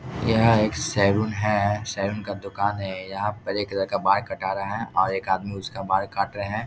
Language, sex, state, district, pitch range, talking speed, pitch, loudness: Hindi, male, Bihar, Jahanabad, 100-105 Hz, 215 wpm, 100 Hz, -24 LUFS